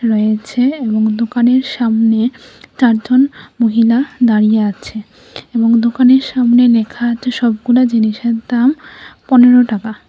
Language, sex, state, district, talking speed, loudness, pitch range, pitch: Bengali, female, Tripura, West Tripura, 105 wpm, -13 LUFS, 220-250 Hz, 235 Hz